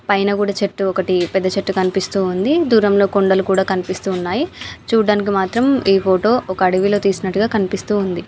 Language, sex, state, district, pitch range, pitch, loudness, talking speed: Telugu, female, Telangana, Nalgonda, 190-205 Hz, 195 Hz, -17 LUFS, 150 wpm